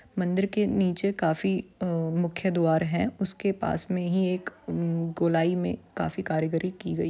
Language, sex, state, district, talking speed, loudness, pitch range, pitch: Hindi, female, Bihar, Saran, 160 wpm, -27 LUFS, 165-195 Hz, 180 Hz